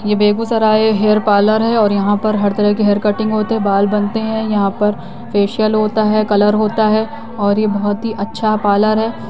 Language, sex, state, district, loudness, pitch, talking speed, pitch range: Hindi, female, Bihar, Lakhisarai, -15 LUFS, 215 Hz, 215 wpm, 205-220 Hz